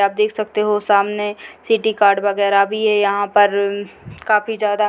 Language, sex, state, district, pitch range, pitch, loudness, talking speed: Hindi, female, Bihar, Sitamarhi, 200-210 Hz, 205 Hz, -17 LUFS, 185 wpm